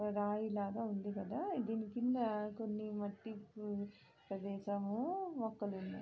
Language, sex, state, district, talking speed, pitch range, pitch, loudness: Telugu, female, Andhra Pradesh, Srikakulam, 100 wpm, 200-225 Hz, 210 Hz, -41 LUFS